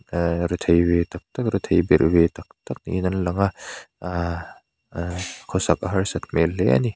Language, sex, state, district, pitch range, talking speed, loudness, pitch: Mizo, male, Mizoram, Aizawl, 85-95 Hz, 170 wpm, -22 LUFS, 85 Hz